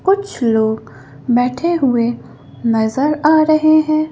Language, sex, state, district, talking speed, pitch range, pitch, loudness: Hindi, female, Madhya Pradesh, Bhopal, 115 wpm, 235-310 Hz, 285 Hz, -15 LUFS